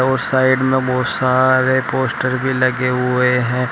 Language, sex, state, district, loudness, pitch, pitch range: Hindi, male, Uttar Pradesh, Shamli, -16 LUFS, 130 Hz, 125-130 Hz